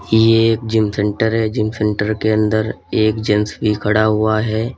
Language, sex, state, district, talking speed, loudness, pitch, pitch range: Hindi, male, Uttar Pradesh, Lalitpur, 190 wpm, -16 LUFS, 110 Hz, 105-110 Hz